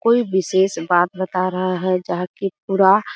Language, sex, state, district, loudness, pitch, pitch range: Hindi, female, Bihar, Kishanganj, -19 LUFS, 185 Hz, 180-195 Hz